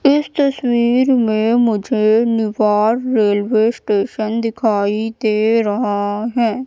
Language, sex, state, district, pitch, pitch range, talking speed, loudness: Hindi, female, Madhya Pradesh, Katni, 225 Hz, 215-240 Hz, 100 wpm, -16 LUFS